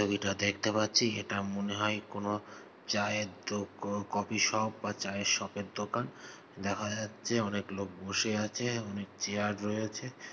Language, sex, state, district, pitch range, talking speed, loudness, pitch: Bengali, male, West Bengal, North 24 Parganas, 100-105 Hz, 150 wpm, -33 LUFS, 105 Hz